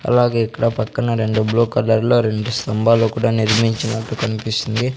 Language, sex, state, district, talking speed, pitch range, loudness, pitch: Telugu, male, Andhra Pradesh, Sri Satya Sai, 135 wpm, 110-120 Hz, -18 LUFS, 115 Hz